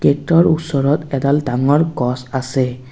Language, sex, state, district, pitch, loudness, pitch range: Assamese, male, Assam, Kamrup Metropolitan, 140 Hz, -16 LUFS, 130-150 Hz